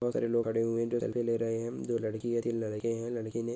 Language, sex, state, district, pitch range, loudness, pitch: Hindi, male, West Bengal, Purulia, 115-120 Hz, -32 LUFS, 115 Hz